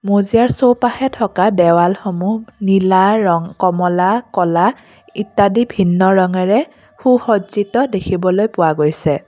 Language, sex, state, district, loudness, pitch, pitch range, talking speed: Assamese, female, Assam, Kamrup Metropolitan, -14 LUFS, 200 Hz, 185-225 Hz, 90 wpm